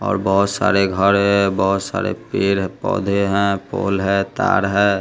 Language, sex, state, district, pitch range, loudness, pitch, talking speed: Hindi, male, Bihar, West Champaran, 95-100 Hz, -18 LUFS, 100 Hz, 170 wpm